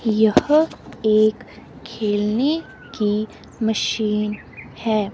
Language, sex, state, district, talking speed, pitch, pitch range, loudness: Hindi, female, Himachal Pradesh, Shimla, 70 wpm, 220 Hz, 210-230 Hz, -20 LUFS